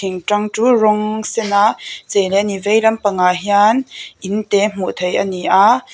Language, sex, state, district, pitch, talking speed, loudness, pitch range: Mizo, female, Mizoram, Aizawl, 205 Hz, 160 wpm, -15 LUFS, 195-215 Hz